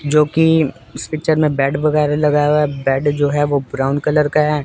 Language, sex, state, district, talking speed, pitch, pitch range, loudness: Hindi, male, Chandigarh, Chandigarh, 220 wpm, 150 Hz, 140-150 Hz, -16 LUFS